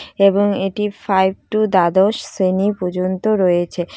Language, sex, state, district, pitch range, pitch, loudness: Bengali, female, West Bengal, Jalpaiguri, 185-205 Hz, 195 Hz, -17 LUFS